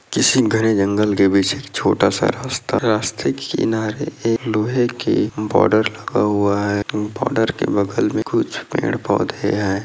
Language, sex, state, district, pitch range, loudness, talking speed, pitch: Hindi, male, Andhra Pradesh, Chittoor, 100-115 Hz, -19 LUFS, 165 wpm, 105 Hz